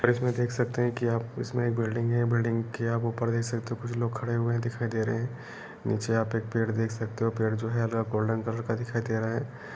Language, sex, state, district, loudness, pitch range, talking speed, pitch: Hindi, male, Uttar Pradesh, Jalaun, -29 LUFS, 115-120 Hz, 265 wpm, 115 Hz